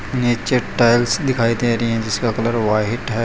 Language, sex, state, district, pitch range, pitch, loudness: Hindi, male, Gujarat, Valsad, 115-120 Hz, 115 Hz, -18 LUFS